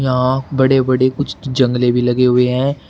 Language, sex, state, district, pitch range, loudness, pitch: Hindi, male, Uttar Pradesh, Shamli, 125-135 Hz, -15 LUFS, 130 Hz